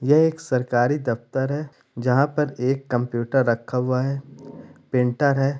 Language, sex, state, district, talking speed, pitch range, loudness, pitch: Hindi, male, Bihar, Gopalganj, 150 wpm, 125-140 Hz, -22 LUFS, 130 Hz